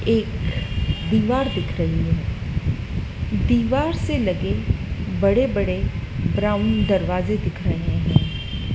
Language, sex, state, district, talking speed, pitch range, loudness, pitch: Hindi, female, Madhya Pradesh, Dhar, 95 wpm, 90-105 Hz, -22 LUFS, 100 Hz